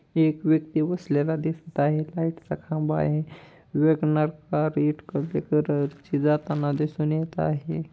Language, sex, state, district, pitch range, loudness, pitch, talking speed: Marathi, male, Maharashtra, Pune, 150-160 Hz, -25 LUFS, 155 Hz, 115 wpm